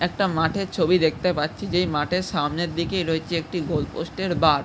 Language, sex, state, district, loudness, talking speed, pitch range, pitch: Bengali, male, West Bengal, Jhargram, -23 LUFS, 205 wpm, 160-180 Hz, 170 Hz